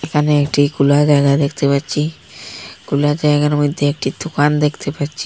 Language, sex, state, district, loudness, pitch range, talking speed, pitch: Bengali, female, Assam, Hailakandi, -16 LUFS, 145-150 Hz, 150 wpm, 145 Hz